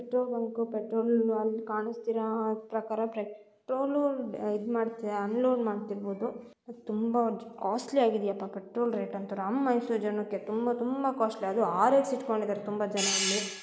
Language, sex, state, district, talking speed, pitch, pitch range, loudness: Kannada, female, Karnataka, Mysore, 150 wpm, 225 Hz, 210-240 Hz, -30 LUFS